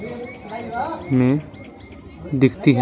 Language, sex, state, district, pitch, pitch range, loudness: Hindi, male, Bihar, Patna, 130 Hz, 95-140 Hz, -21 LUFS